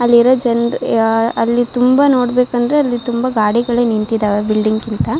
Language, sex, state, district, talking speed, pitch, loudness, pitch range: Kannada, female, Karnataka, Shimoga, 140 wpm, 235 Hz, -14 LUFS, 225-245 Hz